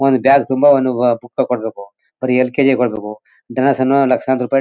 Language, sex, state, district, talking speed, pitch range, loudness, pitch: Kannada, male, Karnataka, Mysore, 155 wpm, 120-135 Hz, -15 LUFS, 130 Hz